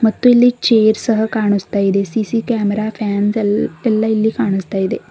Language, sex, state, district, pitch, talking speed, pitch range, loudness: Kannada, female, Karnataka, Bidar, 220 Hz, 165 wpm, 205-225 Hz, -15 LUFS